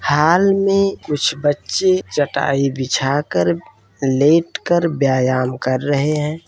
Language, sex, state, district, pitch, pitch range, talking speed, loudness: Hindi, male, Uttar Pradesh, Etah, 145 Hz, 130-165 Hz, 100 wpm, -17 LUFS